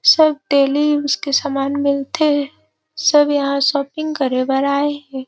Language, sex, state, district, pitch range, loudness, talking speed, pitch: Chhattisgarhi, female, Chhattisgarh, Rajnandgaon, 275-295 Hz, -17 LUFS, 160 wpm, 280 Hz